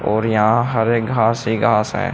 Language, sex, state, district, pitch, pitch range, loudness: Hindi, male, Haryana, Jhajjar, 115 Hz, 110-120 Hz, -17 LUFS